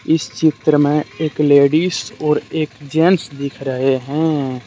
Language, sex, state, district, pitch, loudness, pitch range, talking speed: Hindi, male, Jharkhand, Deoghar, 150 Hz, -17 LUFS, 140-155 Hz, 140 wpm